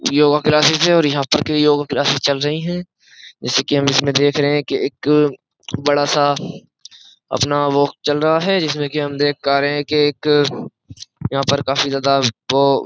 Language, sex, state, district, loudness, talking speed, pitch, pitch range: Hindi, male, Uttar Pradesh, Jyotiba Phule Nagar, -16 LUFS, 200 wpm, 145 Hz, 140-150 Hz